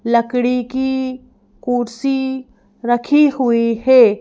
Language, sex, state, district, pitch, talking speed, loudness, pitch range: Hindi, female, Madhya Pradesh, Bhopal, 245 Hz, 85 wpm, -16 LUFS, 235-260 Hz